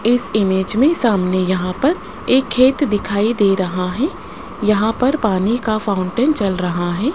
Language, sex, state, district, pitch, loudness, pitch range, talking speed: Hindi, female, Rajasthan, Jaipur, 215 Hz, -17 LUFS, 190-255 Hz, 170 wpm